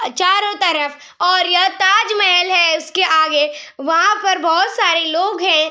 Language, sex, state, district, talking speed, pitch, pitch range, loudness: Hindi, female, Bihar, Araria, 160 wpm, 355 Hz, 315-380 Hz, -14 LUFS